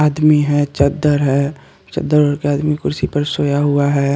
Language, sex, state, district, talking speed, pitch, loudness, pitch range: Hindi, male, Chandigarh, Chandigarh, 190 wpm, 145 Hz, -16 LUFS, 140-150 Hz